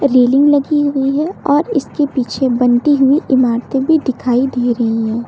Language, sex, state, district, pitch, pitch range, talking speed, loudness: Hindi, female, Uttar Pradesh, Lucknow, 265 Hz, 245-285 Hz, 170 wpm, -14 LUFS